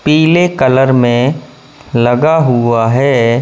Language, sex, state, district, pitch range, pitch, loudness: Hindi, male, Madhya Pradesh, Katni, 120-150 Hz, 130 Hz, -11 LUFS